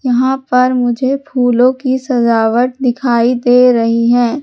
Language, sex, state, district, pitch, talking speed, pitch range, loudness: Hindi, female, Madhya Pradesh, Katni, 250 Hz, 135 wpm, 240-260 Hz, -12 LUFS